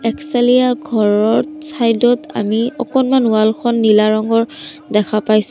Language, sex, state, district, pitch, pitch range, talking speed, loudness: Assamese, female, Assam, Sonitpur, 230 Hz, 215-255 Hz, 130 wpm, -15 LUFS